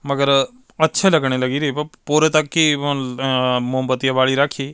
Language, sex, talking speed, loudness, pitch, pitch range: Punjabi, male, 150 wpm, -18 LUFS, 140 Hz, 130-155 Hz